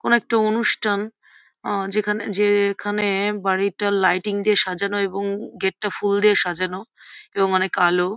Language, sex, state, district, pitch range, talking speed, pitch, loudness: Bengali, female, West Bengal, Jhargram, 190-210 Hz, 145 wpm, 200 Hz, -20 LUFS